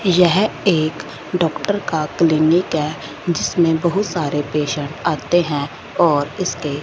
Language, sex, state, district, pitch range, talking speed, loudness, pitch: Hindi, female, Punjab, Fazilka, 150-175 Hz, 125 wpm, -18 LUFS, 165 Hz